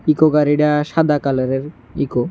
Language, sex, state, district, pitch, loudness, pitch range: Bengali, male, Tripura, West Tripura, 150 Hz, -17 LUFS, 135-150 Hz